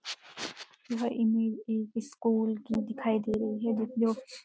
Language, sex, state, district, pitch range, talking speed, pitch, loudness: Hindi, female, Uttarakhand, Uttarkashi, 220-230 Hz, 135 wpm, 225 Hz, -31 LUFS